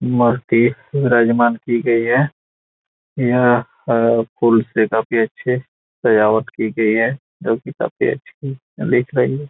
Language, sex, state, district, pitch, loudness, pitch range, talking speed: Hindi, male, Bihar, Saran, 120 Hz, -17 LUFS, 115-125 Hz, 140 wpm